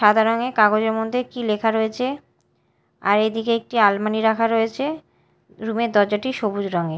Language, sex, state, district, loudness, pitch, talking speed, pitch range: Bengali, female, Odisha, Malkangiri, -20 LUFS, 220 Hz, 155 wpm, 210-235 Hz